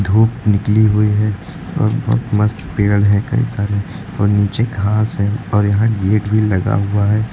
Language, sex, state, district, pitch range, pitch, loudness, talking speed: Hindi, male, Uttar Pradesh, Lucknow, 100-110 Hz, 105 Hz, -16 LUFS, 180 wpm